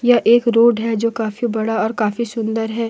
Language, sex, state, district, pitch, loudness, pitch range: Hindi, female, Jharkhand, Deoghar, 230 Hz, -17 LUFS, 220-235 Hz